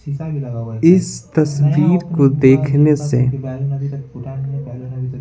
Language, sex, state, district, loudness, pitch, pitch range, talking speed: Hindi, male, Bihar, Patna, -16 LUFS, 140 Hz, 130-150 Hz, 55 wpm